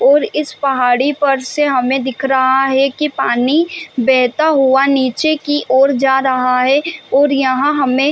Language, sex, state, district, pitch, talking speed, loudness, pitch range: Hindi, female, Chhattisgarh, Bastar, 270 Hz, 170 wpm, -14 LUFS, 260-290 Hz